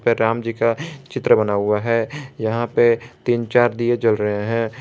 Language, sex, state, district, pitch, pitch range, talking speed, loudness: Hindi, male, Jharkhand, Garhwa, 115 Hz, 115-120 Hz, 185 wpm, -19 LUFS